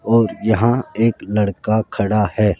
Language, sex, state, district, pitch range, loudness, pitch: Hindi, male, Rajasthan, Jaipur, 105-115 Hz, -18 LUFS, 110 Hz